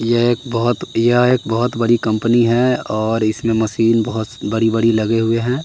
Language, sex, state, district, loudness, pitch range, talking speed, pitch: Hindi, male, Bihar, West Champaran, -16 LUFS, 110-120 Hz, 190 wpm, 115 Hz